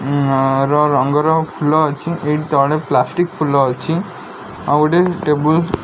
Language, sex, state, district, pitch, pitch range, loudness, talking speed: Odia, male, Odisha, Khordha, 150 Hz, 140-160 Hz, -16 LUFS, 125 wpm